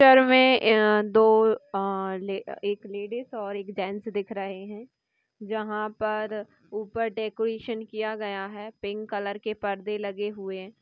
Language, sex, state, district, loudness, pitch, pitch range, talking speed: Hindi, female, Bihar, Gaya, -26 LUFS, 210 Hz, 200-220 Hz, 150 wpm